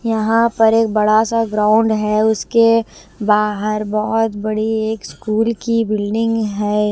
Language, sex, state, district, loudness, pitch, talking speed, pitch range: Hindi, female, Bihar, West Champaran, -16 LUFS, 220 Hz, 140 wpm, 210-225 Hz